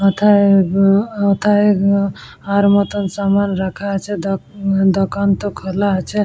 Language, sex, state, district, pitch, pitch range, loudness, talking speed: Bengali, female, West Bengal, Dakshin Dinajpur, 200 Hz, 195-200 Hz, -16 LUFS, 135 wpm